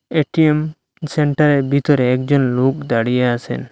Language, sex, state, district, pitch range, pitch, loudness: Bengali, male, Assam, Hailakandi, 125-155 Hz, 140 Hz, -16 LUFS